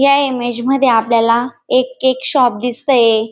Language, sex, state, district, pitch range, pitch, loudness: Marathi, female, Maharashtra, Dhule, 235-260 Hz, 250 Hz, -14 LUFS